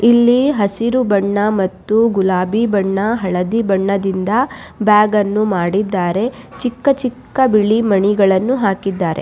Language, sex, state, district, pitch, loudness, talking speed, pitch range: Kannada, female, Karnataka, Raichur, 210 Hz, -15 LUFS, 95 wpm, 195-230 Hz